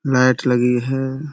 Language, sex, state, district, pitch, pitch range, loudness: Hindi, male, Uttar Pradesh, Budaun, 130 Hz, 125-135 Hz, -18 LUFS